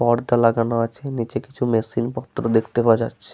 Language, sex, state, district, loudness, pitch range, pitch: Bengali, male, West Bengal, Paschim Medinipur, -21 LUFS, 115-120 Hz, 115 Hz